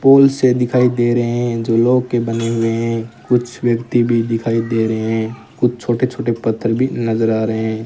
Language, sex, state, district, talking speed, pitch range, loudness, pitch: Hindi, male, Rajasthan, Bikaner, 215 wpm, 115-120 Hz, -17 LUFS, 115 Hz